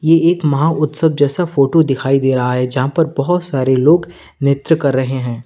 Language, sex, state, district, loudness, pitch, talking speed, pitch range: Hindi, male, Uttar Pradesh, Lalitpur, -15 LUFS, 140 Hz, 210 wpm, 130-160 Hz